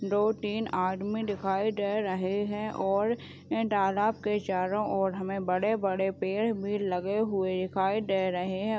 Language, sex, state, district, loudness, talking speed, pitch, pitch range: Hindi, female, Chhattisgarh, Bilaspur, -29 LUFS, 155 wpm, 200 Hz, 190-210 Hz